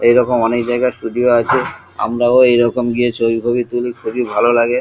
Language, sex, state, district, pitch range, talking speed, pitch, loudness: Bengali, male, West Bengal, Kolkata, 120-125 Hz, 175 wpm, 120 Hz, -15 LUFS